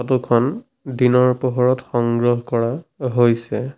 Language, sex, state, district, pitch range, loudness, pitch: Assamese, male, Assam, Sonitpur, 120-130 Hz, -18 LUFS, 125 Hz